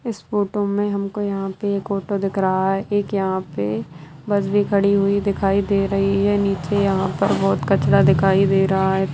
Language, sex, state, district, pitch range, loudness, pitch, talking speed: Hindi, female, Bihar, Jamui, 190-200 Hz, -19 LUFS, 195 Hz, 210 wpm